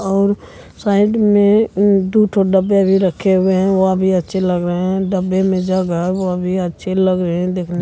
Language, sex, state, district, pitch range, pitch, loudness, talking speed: Hindi, male, Bihar, Araria, 185-195 Hz, 190 Hz, -15 LUFS, 205 wpm